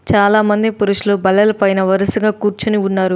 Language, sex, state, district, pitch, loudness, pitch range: Telugu, female, Telangana, Adilabad, 205 Hz, -14 LUFS, 195-210 Hz